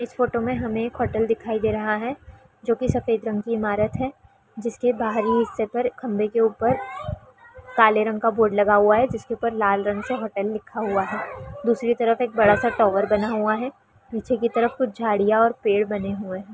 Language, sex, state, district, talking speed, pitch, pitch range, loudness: Hindi, female, Chhattisgarh, Raigarh, 220 wpm, 225 Hz, 215-240 Hz, -22 LUFS